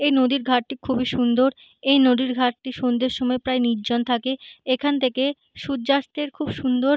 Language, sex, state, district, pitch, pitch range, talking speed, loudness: Bengali, female, West Bengal, Jhargram, 260 Hz, 250-275 Hz, 155 wpm, -22 LUFS